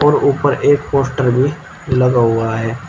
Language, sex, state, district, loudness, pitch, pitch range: Hindi, male, Uttar Pradesh, Shamli, -15 LUFS, 135 Hz, 125-145 Hz